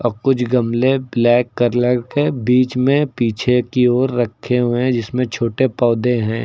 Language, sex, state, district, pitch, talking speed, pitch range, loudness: Hindi, male, Uttar Pradesh, Lucknow, 125 Hz, 160 wpm, 120-125 Hz, -17 LUFS